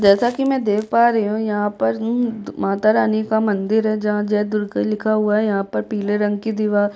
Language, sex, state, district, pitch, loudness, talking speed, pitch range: Hindi, female, Chhattisgarh, Jashpur, 210 Hz, -19 LUFS, 235 wpm, 205-220 Hz